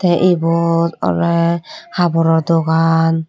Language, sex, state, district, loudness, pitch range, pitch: Chakma, female, Tripura, Dhalai, -15 LUFS, 165-170 Hz, 165 Hz